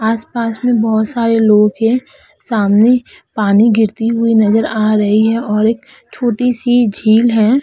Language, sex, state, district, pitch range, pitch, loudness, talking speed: Hindi, female, Uttar Pradesh, Etah, 215-235 Hz, 225 Hz, -13 LUFS, 165 wpm